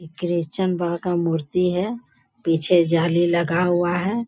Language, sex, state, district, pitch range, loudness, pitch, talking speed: Hindi, female, Bihar, Bhagalpur, 165-180 Hz, -21 LUFS, 175 Hz, 140 wpm